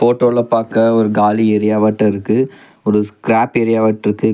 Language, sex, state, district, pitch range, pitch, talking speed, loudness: Tamil, male, Tamil Nadu, Nilgiris, 105-115 Hz, 110 Hz, 165 wpm, -14 LUFS